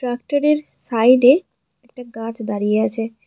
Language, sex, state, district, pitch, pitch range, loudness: Bengali, female, West Bengal, Alipurduar, 245 Hz, 225-255 Hz, -18 LUFS